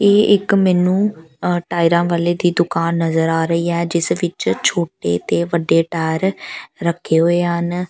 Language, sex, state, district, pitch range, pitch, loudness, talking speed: Punjabi, female, Punjab, Pathankot, 165-180 Hz, 170 Hz, -17 LUFS, 160 wpm